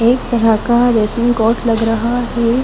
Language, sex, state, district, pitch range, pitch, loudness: Hindi, female, Haryana, Charkhi Dadri, 225-240 Hz, 235 Hz, -14 LUFS